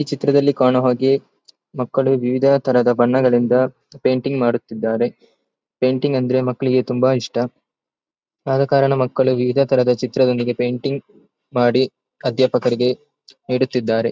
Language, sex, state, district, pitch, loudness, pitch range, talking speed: Kannada, male, Karnataka, Dakshina Kannada, 130 Hz, -18 LUFS, 125-135 Hz, 100 wpm